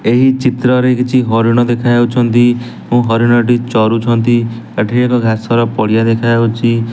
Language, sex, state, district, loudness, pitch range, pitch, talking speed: Odia, male, Odisha, Nuapada, -12 LUFS, 115-120 Hz, 120 Hz, 120 wpm